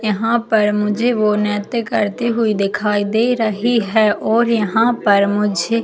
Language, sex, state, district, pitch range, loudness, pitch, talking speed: Hindi, female, Chhattisgarh, Jashpur, 210-230 Hz, -16 LUFS, 215 Hz, 165 wpm